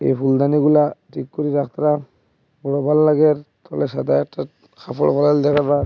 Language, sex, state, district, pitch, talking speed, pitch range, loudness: Bengali, male, Assam, Hailakandi, 145 Hz, 145 wpm, 140-150 Hz, -18 LUFS